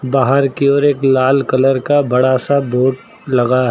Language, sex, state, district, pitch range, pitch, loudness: Hindi, male, Uttar Pradesh, Lucknow, 130-140 Hz, 135 Hz, -14 LUFS